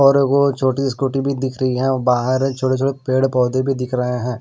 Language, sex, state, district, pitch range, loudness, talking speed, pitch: Hindi, male, Maharashtra, Washim, 125-135 Hz, -18 LUFS, 260 wpm, 130 Hz